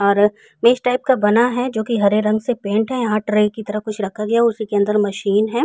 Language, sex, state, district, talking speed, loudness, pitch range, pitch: Hindi, female, Uttar Pradesh, Jalaun, 255 wpm, -18 LUFS, 210-235 Hz, 215 Hz